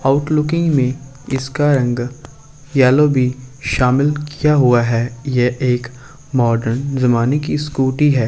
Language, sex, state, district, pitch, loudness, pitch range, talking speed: Hindi, male, Bihar, Samastipur, 135 Hz, -16 LUFS, 125-145 Hz, 130 wpm